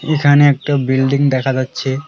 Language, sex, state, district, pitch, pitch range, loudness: Bengali, male, West Bengal, Cooch Behar, 135 Hz, 130-145 Hz, -14 LUFS